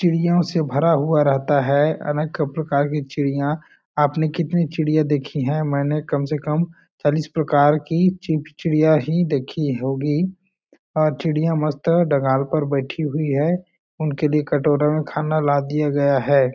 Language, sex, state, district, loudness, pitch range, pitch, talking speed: Hindi, male, Chhattisgarh, Balrampur, -20 LUFS, 145-160 Hz, 150 Hz, 155 wpm